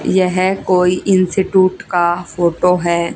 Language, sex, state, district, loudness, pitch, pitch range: Hindi, female, Haryana, Jhajjar, -15 LUFS, 180 Hz, 175-185 Hz